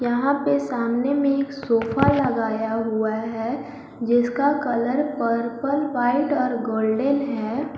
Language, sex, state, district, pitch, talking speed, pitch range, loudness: Hindi, female, Jharkhand, Garhwa, 245 Hz, 125 wpm, 230-280 Hz, -22 LUFS